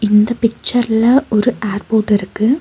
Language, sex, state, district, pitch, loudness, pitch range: Tamil, female, Tamil Nadu, Nilgiris, 220 Hz, -15 LUFS, 210-240 Hz